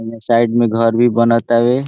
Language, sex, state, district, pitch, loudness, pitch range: Bhojpuri, male, Bihar, Saran, 115 Hz, -14 LUFS, 115-120 Hz